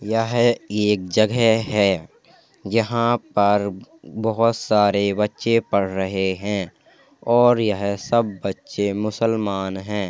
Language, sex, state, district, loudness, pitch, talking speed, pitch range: Hindi, male, Uttar Pradesh, Hamirpur, -20 LUFS, 105 Hz, 105 wpm, 100-115 Hz